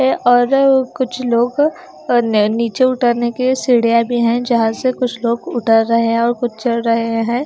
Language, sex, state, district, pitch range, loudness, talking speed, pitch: Hindi, female, Haryana, Charkhi Dadri, 230-255 Hz, -15 LUFS, 195 wpm, 240 Hz